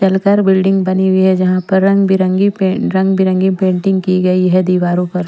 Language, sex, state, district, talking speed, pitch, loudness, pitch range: Hindi, female, Bihar, Patna, 180 wpm, 190 Hz, -13 LUFS, 185-190 Hz